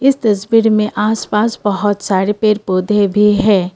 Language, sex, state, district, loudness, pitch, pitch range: Hindi, female, Assam, Kamrup Metropolitan, -14 LUFS, 210 Hz, 200-215 Hz